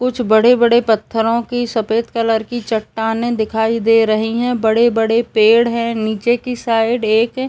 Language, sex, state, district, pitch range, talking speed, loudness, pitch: Hindi, male, Uttar Pradesh, Etah, 220-240 Hz, 160 wpm, -15 LUFS, 230 Hz